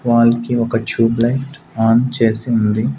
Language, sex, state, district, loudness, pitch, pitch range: Telugu, male, Andhra Pradesh, Sri Satya Sai, -16 LUFS, 115 Hz, 115-120 Hz